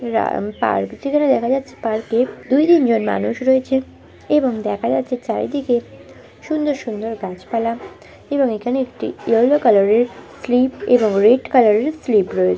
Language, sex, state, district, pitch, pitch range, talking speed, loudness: Bengali, female, West Bengal, Malda, 245 Hz, 225-265 Hz, 145 wpm, -18 LUFS